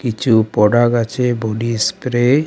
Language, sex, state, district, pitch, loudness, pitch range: Bengali, male, West Bengal, Alipurduar, 120 Hz, -16 LUFS, 110-120 Hz